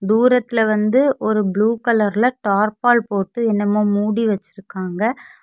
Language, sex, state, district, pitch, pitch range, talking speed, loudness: Tamil, female, Tamil Nadu, Kanyakumari, 215 Hz, 205-235 Hz, 110 wpm, -18 LUFS